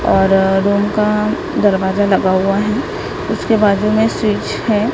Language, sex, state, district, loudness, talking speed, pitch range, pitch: Hindi, female, Maharashtra, Gondia, -15 LUFS, 145 wpm, 195-210 Hz, 205 Hz